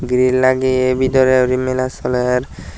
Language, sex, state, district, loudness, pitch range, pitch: Chakma, male, Tripura, Dhalai, -15 LUFS, 125-130 Hz, 130 Hz